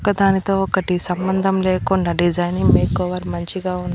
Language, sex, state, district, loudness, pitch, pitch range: Telugu, female, Andhra Pradesh, Annamaya, -19 LUFS, 180 Hz, 175-190 Hz